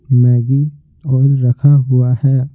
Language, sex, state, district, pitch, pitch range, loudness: Hindi, male, Bihar, Patna, 135 Hz, 125-140 Hz, -13 LUFS